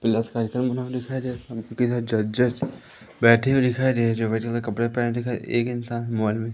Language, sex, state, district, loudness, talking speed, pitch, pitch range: Hindi, male, Madhya Pradesh, Umaria, -24 LUFS, 200 wpm, 120 Hz, 115-125 Hz